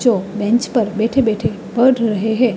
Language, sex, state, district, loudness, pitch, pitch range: Hindi, female, Uttar Pradesh, Hamirpur, -17 LUFS, 225 Hz, 210-240 Hz